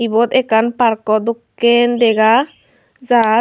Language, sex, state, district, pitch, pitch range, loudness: Chakma, female, Tripura, Unakoti, 235 Hz, 220-240 Hz, -14 LUFS